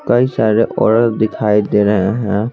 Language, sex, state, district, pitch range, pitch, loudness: Hindi, male, Bihar, Patna, 105-115 Hz, 110 Hz, -14 LUFS